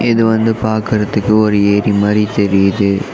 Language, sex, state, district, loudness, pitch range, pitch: Tamil, male, Tamil Nadu, Namakkal, -13 LUFS, 100-110 Hz, 105 Hz